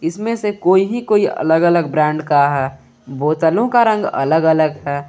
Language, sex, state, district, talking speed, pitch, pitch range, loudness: Hindi, male, Jharkhand, Garhwa, 175 wpm, 160 Hz, 145-205 Hz, -16 LUFS